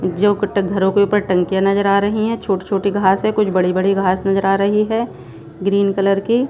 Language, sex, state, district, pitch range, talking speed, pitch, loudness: Hindi, female, Bihar, Patna, 190-205 Hz, 210 wpm, 195 Hz, -17 LUFS